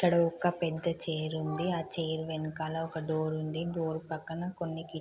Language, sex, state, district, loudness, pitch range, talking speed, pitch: Telugu, female, Andhra Pradesh, Guntur, -33 LUFS, 160-170 Hz, 190 wpm, 160 Hz